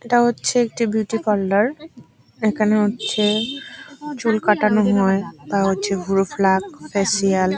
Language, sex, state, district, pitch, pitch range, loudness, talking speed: Bengali, female, West Bengal, Jalpaiguri, 210 Hz, 195-235 Hz, -19 LUFS, 125 wpm